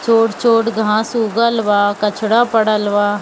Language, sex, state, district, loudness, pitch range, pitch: Hindi, female, Bihar, Kishanganj, -15 LUFS, 210-230 Hz, 220 Hz